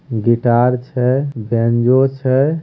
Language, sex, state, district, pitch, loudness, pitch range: Hindi, male, Bihar, Begusarai, 125 Hz, -15 LUFS, 120-135 Hz